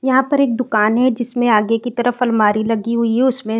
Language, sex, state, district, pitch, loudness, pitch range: Hindi, female, Uttar Pradesh, Varanasi, 240 Hz, -16 LUFS, 225-250 Hz